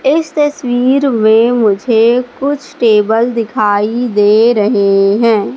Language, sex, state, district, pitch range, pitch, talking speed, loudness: Hindi, female, Madhya Pradesh, Katni, 210-255 Hz, 230 Hz, 110 wpm, -11 LUFS